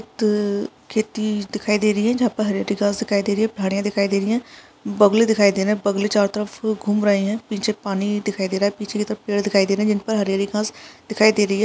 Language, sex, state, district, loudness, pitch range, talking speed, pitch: Hindi, female, Bihar, Saharsa, -20 LUFS, 200-215 Hz, 265 wpm, 210 Hz